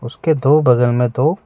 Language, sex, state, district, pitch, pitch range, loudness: Hindi, male, Arunachal Pradesh, Lower Dibang Valley, 130 Hz, 125-155 Hz, -15 LUFS